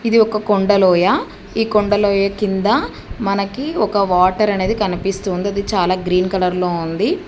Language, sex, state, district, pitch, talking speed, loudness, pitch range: Telugu, female, Telangana, Mahabubabad, 200 Hz, 140 wpm, -17 LUFS, 185-215 Hz